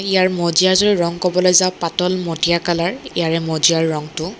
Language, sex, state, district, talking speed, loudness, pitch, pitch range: Assamese, female, Assam, Kamrup Metropolitan, 165 wpm, -16 LUFS, 175 Hz, 165-185 Hz